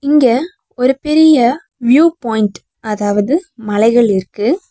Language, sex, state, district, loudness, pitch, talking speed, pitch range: Tamil, female, Tamil Nadu, Nilgiris, -13 LUFS, 245 Hz, 100 wpm, 215-305 Hz